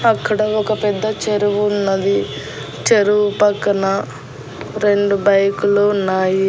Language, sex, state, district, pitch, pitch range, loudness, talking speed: Telugu, female, Andhra Pradesh, Annamaya, 200 Hz, 190-210 Hz, -16 LUFS, 100 wpm